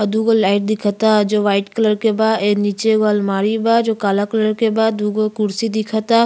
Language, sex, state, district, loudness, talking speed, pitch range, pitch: Bhojpuri, female, Uttar Pradesh, Ghazipur, -16 LUFS, 240 wpm, 205-220 Hz, 215 Hz